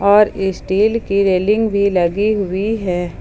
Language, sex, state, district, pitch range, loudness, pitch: Hindi, female, Jharkhand, Ranchi, 190-210 Hz, -16 LUFS, 200 Hz